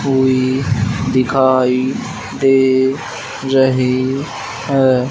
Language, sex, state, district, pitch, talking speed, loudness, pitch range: Hindi, male, Madhya Pradesh, Dhar, 130 Hz, 60 wpm, -15 LUFS, 130-135 Hz